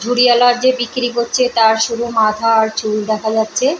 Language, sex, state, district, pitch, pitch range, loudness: Bengali, female, West Bengal, Purulia, 235 Hz, 220-245 Hz, -14 LUFS